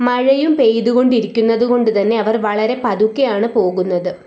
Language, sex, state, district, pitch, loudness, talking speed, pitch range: Malayalam, female, Kerala, Kollam, 225 Hz, -15 LUFS, 110 wpm, 215-245 Hz